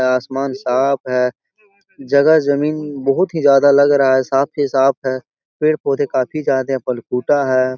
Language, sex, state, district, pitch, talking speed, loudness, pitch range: Hindi, male, Bihar, Jahanabad, 140 Hz, 155 wpm, -16 LUFS, 130-145 Hz